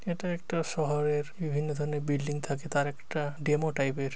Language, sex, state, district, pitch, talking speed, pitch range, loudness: Bengali, male, West Bengal, Dakshin Dinajpur, 150 Hz, 175 wpm, 145-155 Hz, -31 LUFS